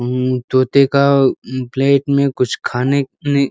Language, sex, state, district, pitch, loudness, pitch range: Hindi, male, Uttar Pradesh, Ghazipur, 135 Hz, -15 LUFS, 130-140 Hz